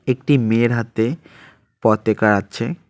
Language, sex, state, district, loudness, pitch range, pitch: Bengali, male, West Bengal, Cooch Behar, -18 LUFS, 110-130 Hz, 115 Hz